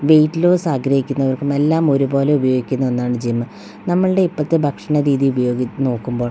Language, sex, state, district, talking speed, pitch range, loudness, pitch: Malayalam, female, Kerala, Wayanad, 135 wpm, 125-150 Hz, -17 LUFS, 135 Hz